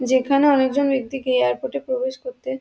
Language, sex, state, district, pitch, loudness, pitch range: Bengali, female, West Bengal, Dakshin Dinajpur, 260 Hz, -20 LUFS, 255-275 Hz